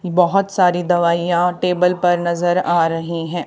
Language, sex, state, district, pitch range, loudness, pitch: Hindi, female, Haryana, Charkhi Dadri, 170-180 Hz, -17 LUFS, 175 Hz